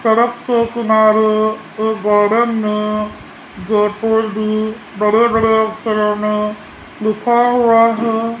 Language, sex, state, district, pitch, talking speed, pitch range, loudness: Hindi, female, Rajasthan, Jaipur, 220 Hz, 95 wpm, 210-230 Hz, -15 LUFS